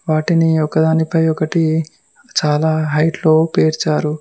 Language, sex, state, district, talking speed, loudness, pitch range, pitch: Telugu, male, Telangana, Mahabubabad, 100 wpm, -16 LUFS, 155-160 Hz, 160 Hz